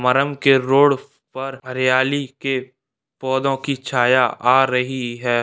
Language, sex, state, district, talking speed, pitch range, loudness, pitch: Hindi, male, Bihar, Darbhanga, 120 wpm, 130-135 Hz, -18 LUFS, 130 Hz